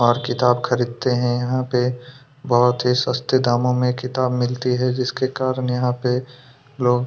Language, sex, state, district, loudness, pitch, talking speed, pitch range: Hindi, male, Chhattisgarh, Kabirdham, -20 LUFS, 125 Hz, 160 wpm, 125-130 Hz